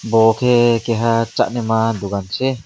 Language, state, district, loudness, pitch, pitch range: Kokborok, Tripura, West Tripura, -17 LUFS, 115 Hz, 110-120 Hz